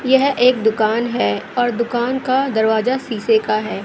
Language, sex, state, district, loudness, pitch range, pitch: Hindi, female, Bihar, West Champaran, -17 LUFS, 220-255 Hz, 240 Hz